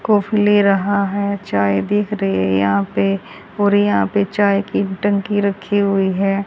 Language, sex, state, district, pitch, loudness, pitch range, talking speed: Hindi, female, Haryana, Rohtak, 200 Hz, -17 LUFS, 190-205 Hz, 175 wpm